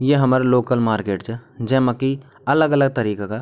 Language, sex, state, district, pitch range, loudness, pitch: Garhwali, male, Uttarakhand, Tehri Garhwal, 115-135 Hz, -19 LUFS, 125 Hz